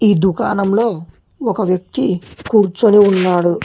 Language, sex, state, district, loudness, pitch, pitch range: Telugu, male, Telangana, Hyderabad, -15 LUFS, 195 Hz, 180-220 Hz